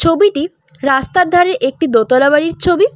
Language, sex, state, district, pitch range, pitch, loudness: Bengali, female, West Bengal, Cooch Behar, 270-360 Hz, 330 Hz, -13 LUFS